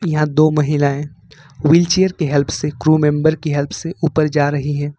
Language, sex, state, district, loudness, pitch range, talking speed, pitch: Hindi, male, Jharkhand, Ranchi, -16 LUFS, 145-155 Hz, 190 wpm, 150 Hz